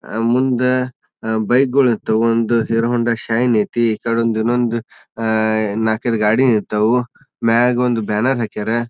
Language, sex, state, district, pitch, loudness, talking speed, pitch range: Kannada, male, Karnataka, Bijapur, 115 Hz, -17 LUFS, 150 wpm, 110-120 Hz